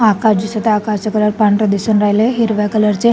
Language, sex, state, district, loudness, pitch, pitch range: Marathi, female, Maharashtra, Sindhudurg, -14 LUFS, 215 Hz, 210-220 Hz